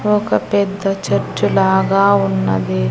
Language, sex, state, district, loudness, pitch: Telugu, female, Andhra Pradesh, Annamaya, -16 LUFS, 195 Hz